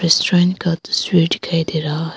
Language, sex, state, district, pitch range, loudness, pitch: Hindi, female, Arunachal Pradesh, Papum Pare, 165-180 Hz, -17 LUFS, 170 Hz